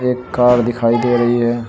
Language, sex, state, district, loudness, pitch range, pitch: Hindi, male, Uttar Pradesh, Shamli, -15 LUFS, 120-125 Hz, 120 Hz